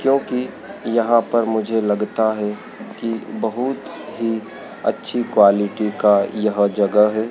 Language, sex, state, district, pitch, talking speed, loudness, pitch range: Hindi, male, Madhya Pradesh, Dhar, 110 Hz, 130 wpm, -19 LUFS, 105-115 Hz